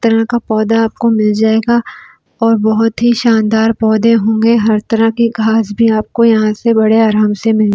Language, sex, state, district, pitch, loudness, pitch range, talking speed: Hindi, female, Delhi, New Delhi, 225 Hz, -12 LUFS, 220-230 Hz, 185 wpm